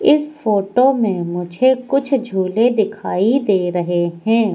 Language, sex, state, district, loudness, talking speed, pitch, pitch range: Hindi, female, Madhya Pradesh, Katni, -17 LUFS, 130 wpm, 215 Hz, 185-255 Hz